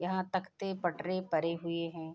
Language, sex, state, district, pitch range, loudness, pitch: Hindi, female, Bihar, Saharsa, 165-185 Hz, -35 LUFS, 175 Hz